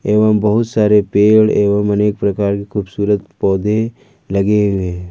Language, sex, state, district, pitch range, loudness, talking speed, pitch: Hindi, male, Jharkhand, Ranchi, 100-105 Hz, -15 LUFS, 140 wpm, 105 Hz